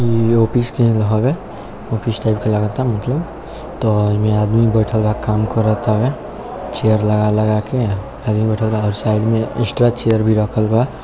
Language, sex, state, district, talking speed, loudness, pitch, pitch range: Maithili, male, Bihar, Samastipur, 165 wpm, -17 LUFS, 110 Hz, 105-120 Hz